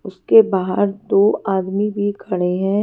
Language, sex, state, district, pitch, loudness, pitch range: Hindi, female, Haryana, Charkhi Dadri, 200 Hz, -17 LUFS, 190-205 Hz